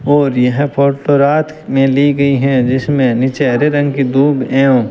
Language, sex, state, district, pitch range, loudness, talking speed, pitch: Hindi, male, Rajasthan, Bikaner, 130-145 Hz, -12 LUFS, 195 wpm, 140 Hz